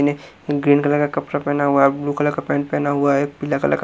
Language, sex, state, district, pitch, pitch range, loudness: Hindi, male, Haryana, Rohtak, 145 Hz, 140-145 Hz, -19 LUFS